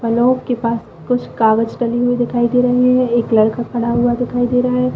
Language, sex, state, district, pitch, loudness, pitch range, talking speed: Hindi, female, Chhattisgarh, Raigarh, 240 Hz, -16 LUFS, 235-245 Hz, 255 wpm